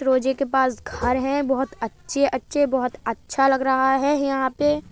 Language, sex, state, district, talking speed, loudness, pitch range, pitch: Hindi, female, Uttar Pradesh, Budaun, 185 wpm, -22 LUFS, 260-280 Hz, 265 Hz